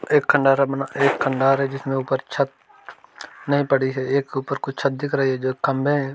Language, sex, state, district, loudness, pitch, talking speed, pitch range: Hindi, male, Uttar Pradesh, Varanasi, -21 LUFS, 135 Hz, 235 wpm, 135-140 Hz